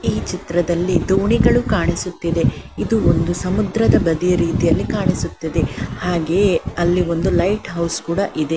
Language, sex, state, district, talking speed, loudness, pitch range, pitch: Kannada, female, Karnataka, Dakshina Kannada, 120 wpm, -18 LUFS, 170-190 Hz, 175 Hz